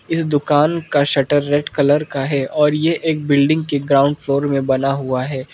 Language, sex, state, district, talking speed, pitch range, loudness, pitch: Hindi, male, Arunachal Pradesh, Lower Dibang Valley, 205 wpm, 140-150 Hz, -17 LUFS, 145 Hz